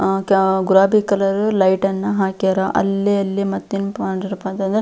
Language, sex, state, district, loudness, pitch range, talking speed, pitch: Kannada, female, Karnataka, Belgaum, -18 LUFS, 190-200 Hz, 135 wpm, 195 Hz